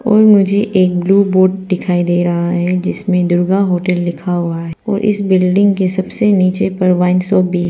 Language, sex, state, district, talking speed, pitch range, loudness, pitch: Hindi, female, Arunachal Pradesh, Papum Pare, 185 wpm, 180-195 Hz, -13 LUFS, 185 Hz